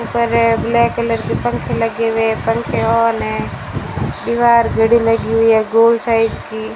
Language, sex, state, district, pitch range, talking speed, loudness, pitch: Hindi, female, Rajasthan, Bikaner, 225-235 Hz, 185 wpm, -15 LUFS, 230 Hz